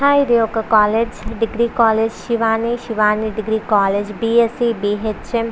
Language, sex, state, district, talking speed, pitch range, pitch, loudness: Telugu, female, Andhra Pradesh, Visakhapatnam, 140 wpm, 215-235 Hz, 225 Hz, -17 LUFS